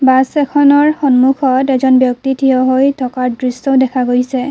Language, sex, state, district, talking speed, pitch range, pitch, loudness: Assamese, female, Assam, Kamrup Metropolitan, 145 wpm, 255-275 Hz, 260 Hz, -12 LUFS